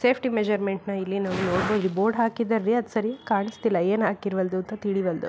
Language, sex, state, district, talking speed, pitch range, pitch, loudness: Kannada, female, Karnataka, Belgaum, 170 wpm, 195-225 Hz, 205 Hz, -25 LUFS